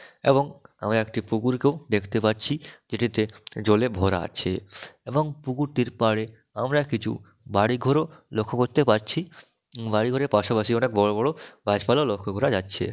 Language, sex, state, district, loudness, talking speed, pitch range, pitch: Bengali, male, West Bengal, Dakshin Dinajpur, -25 LUFS, 130 wpm, 105-140 Hz, 115 Hz